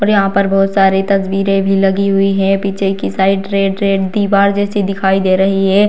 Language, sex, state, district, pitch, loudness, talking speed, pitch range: Hindi, female, Bihar, Darbhanga, 195 Hz, -13 LUFS, 215 wpm, 195-200 Hz